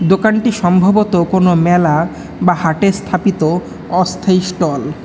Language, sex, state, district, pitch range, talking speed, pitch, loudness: Bengali, male, West Bengal, Alipurduar, 170-195 Hz, 120 wpm, 180 Hz, -14 LUFS